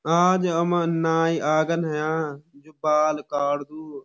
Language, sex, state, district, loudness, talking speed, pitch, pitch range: Garhwali, male, Uttarakhand, Uttarkashi, -23 LUFS, 120 wpm, 155 Hz, 150-165 Hz